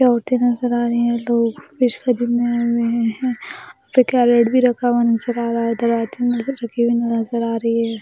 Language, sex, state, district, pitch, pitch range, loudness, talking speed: Hindi, female, Maharashtra, Mumbai Suburban, 235 Hz, 235-245 Hz, -18 LUFS, 150 wpm